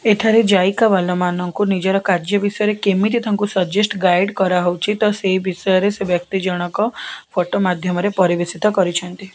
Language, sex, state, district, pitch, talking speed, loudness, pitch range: Odia, female, Odisha, Khordha, 190 Hz, 150 wpm, -17 LUFS, 180-205 Hz